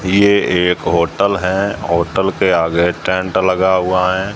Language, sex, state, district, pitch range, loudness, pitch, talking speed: Hindi, male, Rajasthan, Jaisalmer, 90-95 Hz, -15 LUFS, 95 Hz, 150 wpm